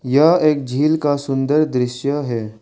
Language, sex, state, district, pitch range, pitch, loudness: Hindi, male, Arunachal Pradesh, Longding, 125-150 Hz, 140 Hz, -17 LUFS